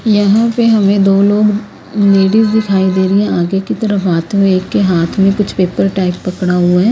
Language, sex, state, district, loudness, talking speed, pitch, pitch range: Hindi, female, Haryana, Rohtak, -12 LUFS, 210 wpm, 195 Hz, 185-210 Hz